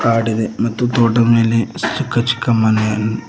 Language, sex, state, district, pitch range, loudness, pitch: Kannada, male, Karnataka, Koppal, 110-120 Hz, -16 LUFS, 115 Hz